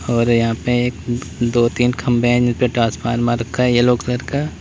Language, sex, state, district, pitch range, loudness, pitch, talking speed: Hindi, male, Uttar Pradesh, Lalitpur, 120-125 Hz, -17 LUFS, 120 Hz, 180 wpm